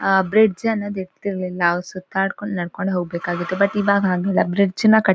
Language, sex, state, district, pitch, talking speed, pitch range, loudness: Kannada, female, Karnataka, Shimoga, 190 Hz, 175 wpm, 180-200 Hz, -20 LUFS